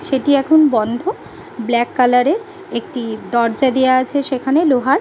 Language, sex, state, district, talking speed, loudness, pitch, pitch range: Bengali, female, West Bengal, Malda, 155 wpm, -16 LUFS, 260 Hz, 240-285 Hz